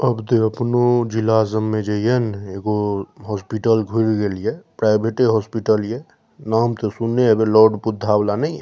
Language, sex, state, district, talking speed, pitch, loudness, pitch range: Maithili, male, Bihar, Saharsa, 155 wpm, 110 Hz, -19 LUFS, 105-115 Hz